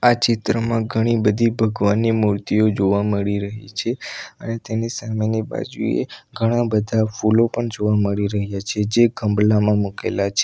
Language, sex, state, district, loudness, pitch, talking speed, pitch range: Gujarati, male, Gujarat, Valsad, -20 LUFS, 110 Hz, 150 wpm, 105-115 Hz